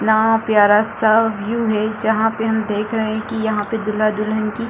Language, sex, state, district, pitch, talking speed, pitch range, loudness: Hindi, female, Bihar, Kishanganj, 220 Hz, 215 wpm, 215-225 Hz, -18 LUFS